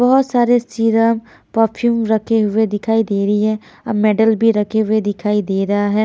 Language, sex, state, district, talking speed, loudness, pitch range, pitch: Hindi, female, Haryana, Jhajjar, 190 wpm, -16 LUFS, 210-225 Hz, 220 Hz